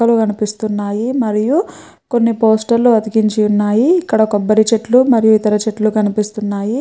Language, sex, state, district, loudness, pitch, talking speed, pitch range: Telugu, female, Andhra Pradesh, Srikakulam, -14 LUFS, 220 Hz, 115 wpm, 210-235 Hz